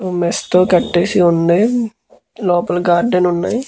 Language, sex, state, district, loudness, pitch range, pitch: Telugu, male, Andhra Pradesh, Guntur, -15 LUFS, 175-210 Hz, 180 Hz